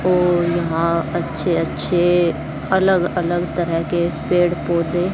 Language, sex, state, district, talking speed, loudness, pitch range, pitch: Hindi, female, Haryana, Charkhi Dadri, 115 wpm, -19 LUFS, 170-175 Hz, 175 Hz